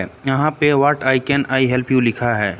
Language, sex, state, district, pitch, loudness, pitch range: Hindi, male, Uttar Pradesh, Lucknow, 130 Hz, -17 LUFS, 120-140 Hz